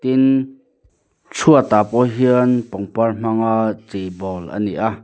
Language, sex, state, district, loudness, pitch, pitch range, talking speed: Mizo, male, Mizoram, Aizawl, -17 LUFS, 110 Hz, 105-125 Hz, 155 wpm